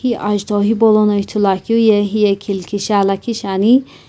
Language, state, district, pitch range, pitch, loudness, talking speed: Sumi, Nagaland, Kohima, 200-220 Hz, 205 Hz, -15 LUFS, 145 wpm